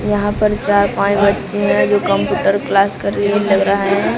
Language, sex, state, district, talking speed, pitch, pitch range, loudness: Hindi, female, Odisha, Sambalpur, 200 wpm, 200 Hz, 200-205 Hz, -15 LUFS